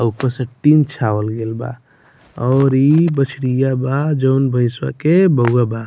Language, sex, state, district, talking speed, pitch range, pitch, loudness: Bhojpuri, male, Bihar, Muzaffarpur, 165 wpm, 120-140 Hz, 130 Hz, -16 LUFS